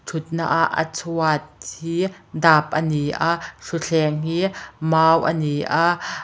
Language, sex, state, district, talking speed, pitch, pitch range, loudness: Mizo, female, Mizoram, Aizawl, 145 wpm, 160 Hz, 155-165 Hz, -21 LUFS